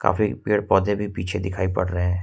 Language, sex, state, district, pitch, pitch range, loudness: Hindi, male, Jharkhand, Ranchi, 95 Hz, 90-105 Hz, -23 LUFS